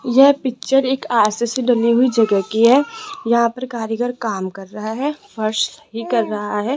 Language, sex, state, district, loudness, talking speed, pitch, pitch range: Hindi, female, Rajasthan, Jaipur, -18 LUFS, 185 wpm, 235 Hz, 220-265 Hz